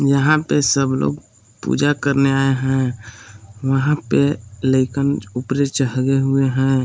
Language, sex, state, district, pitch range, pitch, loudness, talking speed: Hindi, male, Jharkhand, Palamu, 130-140 Hz, 135 Hz, -18 LUFS, 105 wpm